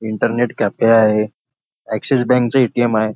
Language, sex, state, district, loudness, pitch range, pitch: Marathi, male, Maharashtra, Nagpur, -15 LUFS, 110-125 Hz, 115 Hz